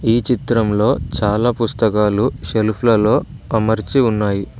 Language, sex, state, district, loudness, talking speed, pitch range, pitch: Telugu, male, Telangana, Mahabubabad, -17 LUFS, 105 wpm, 105-120 Hz, 110 Hz